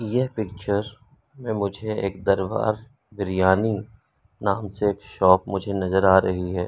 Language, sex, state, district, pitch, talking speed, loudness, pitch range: Hindi, male, Madhya Pradesh, Umaria, 100 Hz, 145 wpm, -23 LUFS, 95-110 Hz